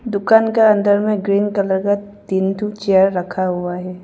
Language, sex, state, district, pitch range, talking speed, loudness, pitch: Hindi, female, Arunachal Pradesh, Papum Pare, 190-210 Hz, 195 wpm, -17 LUFS, 200 Hz